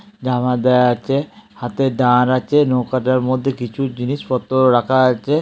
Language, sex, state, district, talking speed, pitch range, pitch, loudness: Bengali, male, West Bengal, Jhargram, 135 wpm, 125-135 Hz, 130 Hz, -17 LUFS